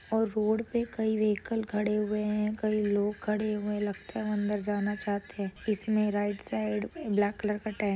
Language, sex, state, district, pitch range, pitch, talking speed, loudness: Marathi, female, Maharashtra, Sindhudurg, 205-215 Hz, 210 Hz, 190 wpm, -30 LUFS